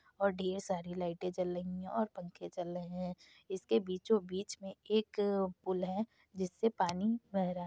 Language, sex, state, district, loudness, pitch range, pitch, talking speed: Hindi, female, Uttar Pradesh, Gorakhpur, -37 LUFS, 180-200 Hz, 185 Hz, 190 wpm